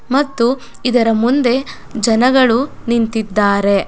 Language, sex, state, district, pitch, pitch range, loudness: Kannada, female, Karnataka, Mysore, 235 Hz, 225-255 Hz, -15 LUFS